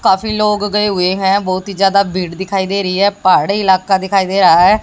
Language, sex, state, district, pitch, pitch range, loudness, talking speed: Hindi, female, Haryana, Jhajjar, 195 Hz, 190-200 Hz, -13 LUFS, 235 wpm